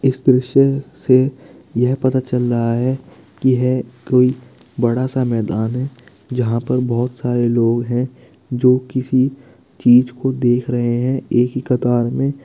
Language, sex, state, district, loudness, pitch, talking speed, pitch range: Hindi, male, Bihar, Kishanganj, -17 LUFS, 125 Hz, 155 wpm, 120-130 Hz